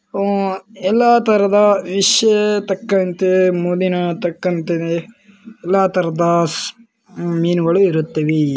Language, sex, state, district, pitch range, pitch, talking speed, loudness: Kannada, male, Karnataka, Bellary, 170-205 Hz, 185 Hz, 75 wpm, -16 LUFS